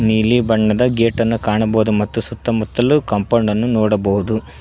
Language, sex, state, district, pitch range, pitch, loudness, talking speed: Kannada, male, Karnataka, Koppal, 110-115 Hz, 110 Hz, -16 LUFS, 145 wpm